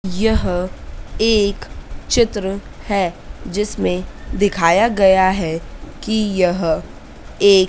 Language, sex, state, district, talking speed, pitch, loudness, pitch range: Hindi, female, Madhya Pradesh, Dhar, 85 wpm, 195 Hz, -17 LUFS, 180-210 Hz